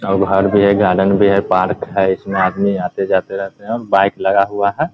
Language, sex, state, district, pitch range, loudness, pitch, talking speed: Hindi, male, Bihar, Muzaffarpur, 95-100 Hz, -15 LUFS, 100 Hz, 230 wpm